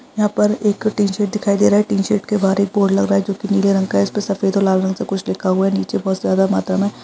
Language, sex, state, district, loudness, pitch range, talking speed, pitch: Hindi, female, Uttar Pradesh, Budaun, -17 LUFS, 195-210 Hz, 330 wpm, 200 Hz